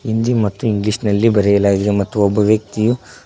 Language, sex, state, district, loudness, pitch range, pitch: Kannada, male, Karnataka, Koppal, -16 LUFS, 100-115 Hz, 105 Hz